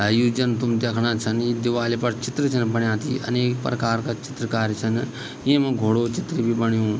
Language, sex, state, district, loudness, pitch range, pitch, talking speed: Garhwali, male, Uttarakhand, Tehri Garhwal, -23 LUFS, 115-125 Hz, 120 Hz, 205 wpm